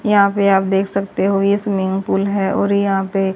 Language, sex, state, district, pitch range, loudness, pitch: Hindi, female, Haryana, Jhajjar, 195-200 Hz, -17 LUFS, 195 Hz